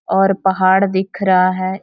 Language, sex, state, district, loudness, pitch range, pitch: Hindi, female, Jharkhand, Sahebganj, -15 LUFS, 185-195 Hz, 190 Hz